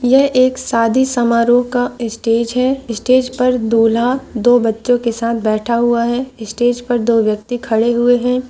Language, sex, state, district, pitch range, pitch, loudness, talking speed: Hindi, female, Maharashtra, Nagpur, 230-250 Hz, 240 Hz, -15 LUFS, 170 wpm